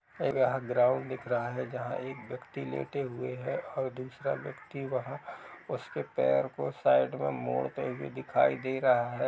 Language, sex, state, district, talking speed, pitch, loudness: Hindi, male, Uttar Pradesh, Jalaun, 170 wpm, 125 Hz, -32 LUFS